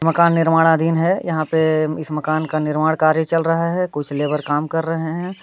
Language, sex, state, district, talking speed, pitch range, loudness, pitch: Hindi, male, Bihar, Muzaffarpur, 220 wpm, 155-165 Hz, -18 LUFS, 160 Hz